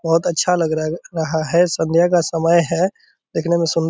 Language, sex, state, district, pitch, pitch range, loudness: Hindi, male, Bihar, Purnia, 165 Hz, 160-175 Hz, -18 LUFS